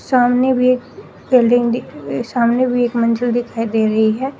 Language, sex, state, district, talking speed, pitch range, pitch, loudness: Hindi, female, Uttar Pradesh, Shamli, 165 wpm, 235-250 Hz, 245 Hz, -16 LUFS